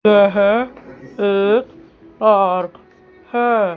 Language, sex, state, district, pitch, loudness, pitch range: Hindi, female, Chandigarh, Chandigarh, 205 Hz, -16 LUFS, 195-225 Hz